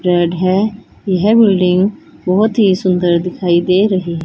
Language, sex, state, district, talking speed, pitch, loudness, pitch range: Hindi, female, Haryana, Charkhi Dadri, 140 wpm, 185 Hz, -13 LUFS, 180-200 Hz